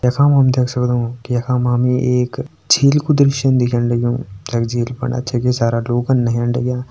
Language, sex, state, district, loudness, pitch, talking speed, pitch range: Hindi, male, Uttarakhand, Tehri Garhwal, -16 LUFS, 125 Hz, 200 wpm, 120-130 Hz